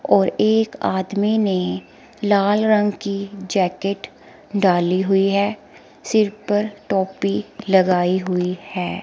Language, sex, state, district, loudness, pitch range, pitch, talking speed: Hindi, female, Himachal Pradesh, Shimla, -20 LUFS, 185-205 Hz, 195 Hz, 115 wpm